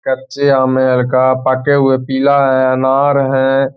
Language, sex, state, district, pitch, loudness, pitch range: Hindi, male, Bihar, Gaya, 130 Hz, -12 LUFS, 130-135 Hz